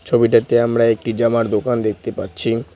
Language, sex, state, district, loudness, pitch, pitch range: Bengali, male, West Bengal, Cooch Behar, -17 LUFS, 115 Hz, 115-120 Hz